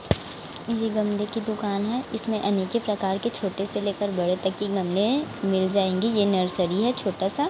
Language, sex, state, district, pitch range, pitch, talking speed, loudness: Hindi, female, Chhattisgarh, Raipur, 190-225 Hz, 205 Hz, 190 wpm, -25 LUFS